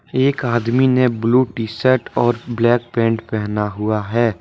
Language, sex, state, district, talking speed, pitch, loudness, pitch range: Hindi, male, Jharkhand, Deoghar, 150 wpm, 120 Hz, -18 LUFS, 110-125 Hz